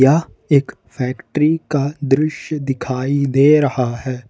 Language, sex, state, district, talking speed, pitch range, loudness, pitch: Hindi, male, Jharkhand, Ranchi, 125 wpm, 130-150 Hz, -17 LUFS, 140 Hz